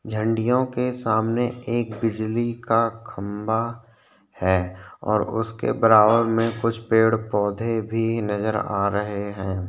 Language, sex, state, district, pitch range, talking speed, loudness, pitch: Hindi, male, Chhattisgarh, Korba, 105-115 Hz, 120 wpm, -23 LUFS, 110 Hz